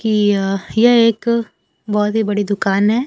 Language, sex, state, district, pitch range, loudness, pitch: Hindi, female, Bihar, Kaimur, 205-230 Hz, -16 LUFS, 210 Hz